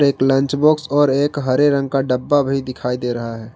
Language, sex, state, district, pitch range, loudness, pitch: Hindi, male, Jharkhand, Garhwa, 125-145 Hz, -17 LUFS, 135 Hz